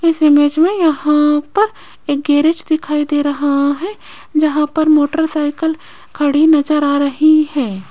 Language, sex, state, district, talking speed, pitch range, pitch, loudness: Hindi, female, Rajasthan, Jaipur, 145 wpm, 290-315 Hz, 300 Hz, -14 LUFS